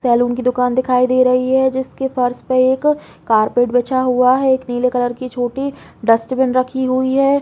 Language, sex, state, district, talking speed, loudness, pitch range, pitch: Hindi, female, Uttar Pradesh, Hamirpur, 195 wpm, -16 LUFS, 245-260 Hz, 255 Hz